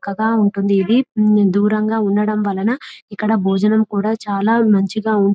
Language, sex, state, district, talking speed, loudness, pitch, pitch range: Telugu, female, Telangana, Nalgonda, 135 wpm, -16 LUFS, 210 Hz, 200-220 Hz